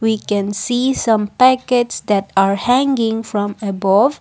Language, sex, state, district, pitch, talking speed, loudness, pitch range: English, female, Assam, Kamrup Metropolitan, 220 Hz, 140 wpm, -16 LUFS, 205-245 Hz